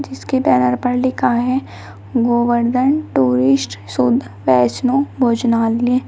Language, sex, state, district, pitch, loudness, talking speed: Hindi, female, Uttar Pradesh, Shamli, 235 Hz, -16 LUFS, 100 wpm